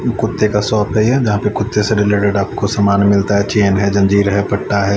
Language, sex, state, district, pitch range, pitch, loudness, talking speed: Hindi, male, Haryana, Charkhi Dadri, 100-105 Hz, 100 Hz, -14 LUFS, 230 wpm